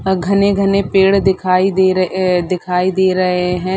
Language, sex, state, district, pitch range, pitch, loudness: Hindi, female, Chhattisgarh, Sarguja, 185-190 Hz, 185 Hz, -14 LUFS